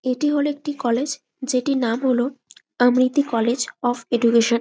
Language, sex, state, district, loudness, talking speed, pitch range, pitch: Bengali, female, West Bengal, Malda, -21 LUFS, 155 wpm, 240-280 Hz, 255 Hz